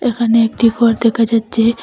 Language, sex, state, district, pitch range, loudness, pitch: Bengali, female, Assam, Hailakandi, 230-235 Hz, -14 LUFS, 230 Hz